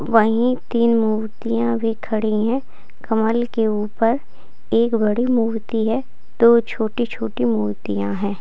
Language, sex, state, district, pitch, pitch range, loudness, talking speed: Hindi, female, Uttar Pradesh, Lalitpur, 225 Hz, 215-235 Hz, -20 LUFS, 130 wpm